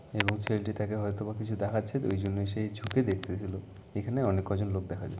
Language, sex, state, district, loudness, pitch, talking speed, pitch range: Bengali, male, West Bengal, Malda, -32 LUFS, 105 Hz, 205 wpm, 100-110 Hz